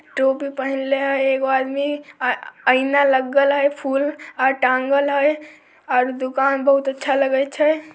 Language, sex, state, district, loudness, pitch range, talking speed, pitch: Maithili, female, Bihar, Samastipur, -19 LUFS, 265-285 Hz, 145 wpm, 275 Hz